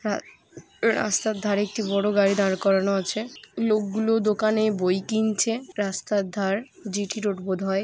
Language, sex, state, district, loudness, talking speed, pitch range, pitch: Bengali, female, West Bengal, Purulia, -24 LUFS, 145 wpm, 195-220 Hz, 205 Hz